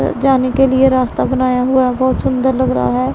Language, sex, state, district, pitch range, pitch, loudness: Hindi, female, Punjab, Pathankot, 250-260 Hz, 255 Hz, -14 LUFS